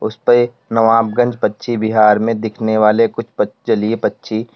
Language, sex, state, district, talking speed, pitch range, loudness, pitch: Hindi, male, Uttar Pradesh, Lalitpur, 130 wpm, 110-120 Hz, -15 LUFS, 115 Hz